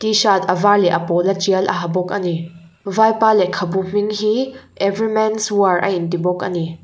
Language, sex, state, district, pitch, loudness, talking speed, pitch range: Mizo, female, Mizoram, Aizawl, 190 Hz, -17 LUFS, 210 wpm, 175-215 Hz